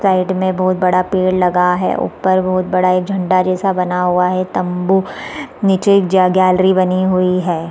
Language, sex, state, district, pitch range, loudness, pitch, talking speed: Hindi, female, Chhattisgarh, Raigarh, 180-190 Hz, -14 LUFS, 185 Hz, 180 wpm